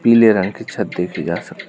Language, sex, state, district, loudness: Hindi, male, Arunachal Pradesh, Lower Dibang Valley, -17 LUFS